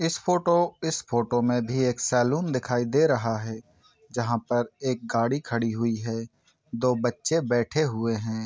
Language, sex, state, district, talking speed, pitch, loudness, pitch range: Hindi, male, Bihar, East Champaran, 170 wpm, 120 Hz, -26 LUFS, 115-145 Hz